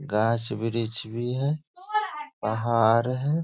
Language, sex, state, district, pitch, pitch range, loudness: Hindi, male, Bihar, Begusarai, 120 Hz, 115-155 Hz, -26 LUFS